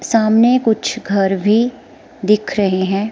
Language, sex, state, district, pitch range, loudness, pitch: Hindi, female, Himachal Pradesh, Shimla, 200-230 Hz, -15 LUFS, 215 Hz